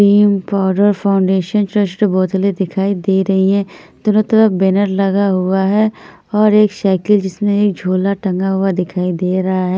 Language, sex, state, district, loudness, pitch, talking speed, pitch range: Hindi, female, Punjab, Fazilka, -14 LUFS, 195 Hz, 160 wpm, 190-205 Hz